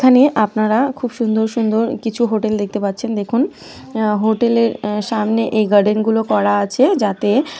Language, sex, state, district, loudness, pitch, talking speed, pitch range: Bengali, female, West Bengal, North 24 Parganas, -16 LUFS, 220 Hz, 150 wpm, 210-235 Hz